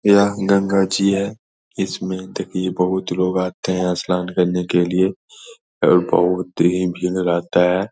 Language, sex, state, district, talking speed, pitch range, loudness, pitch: Hindi, male, Bihar, Lakhisarai, 160 wpm, 90-100 Hz, -19 LUFS, 95 Hz